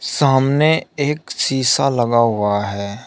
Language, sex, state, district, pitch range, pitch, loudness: Hindi, male, Uttar Pradesh, Shamli, 110-140 Hz, 130 Hz, -17 LUFS